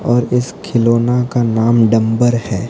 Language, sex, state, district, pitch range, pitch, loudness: Hindi, male, Odisha, Nuapada, 115-120 Hz, 120 Hz, -14 LUFS